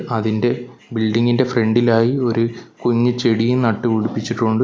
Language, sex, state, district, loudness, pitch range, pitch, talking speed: Malayalam, male, Kerala, Kollam, -18 LUFS, 115-120 Hz, 115 Hz, 115 wpm